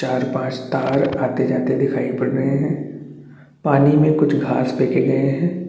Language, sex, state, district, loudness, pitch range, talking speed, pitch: Hindi, male, Chhattisgarh, Bastar, -19 LUFS, 130-145 Hz, 170 wpm, 135 Hz